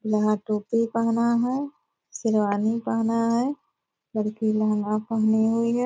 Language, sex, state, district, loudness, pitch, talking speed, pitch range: Hindi, female, Bihar, Purnia, -24 LUFS, 225 Hz, 135 wpm, 215-235 Hz